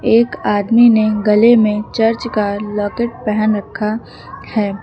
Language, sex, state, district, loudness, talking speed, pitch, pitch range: Hindi, female, Uttar Pradesh, Lucknow, -15 LUFS, 135 wpm, 215 Hz, 210-230 Hz